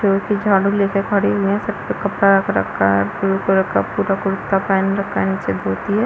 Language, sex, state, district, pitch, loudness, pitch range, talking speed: Hindi, female, Chhattisgarh, Balrampur, 195 Hz, -18 LUFS, 195-200 Hz, 205 wpm